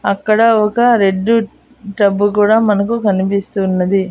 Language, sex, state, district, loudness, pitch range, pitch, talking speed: Telugu, female, Andhra Pradesh, Annamaya, -13 LUFS, 195-225 Hz, 205 Hz, 100 wpm